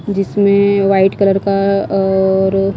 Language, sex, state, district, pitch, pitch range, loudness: Hindi, female, Himachal Pradesh, Shimla, 195 Hz, 195-200 Hz, -13 LUFS